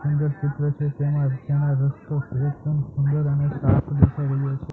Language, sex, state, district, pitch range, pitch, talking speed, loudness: Gujarati, male, Gujarat, Gandhinagar, 140-145 Hz, 145 Hz, 165 wpm, -23 LUFS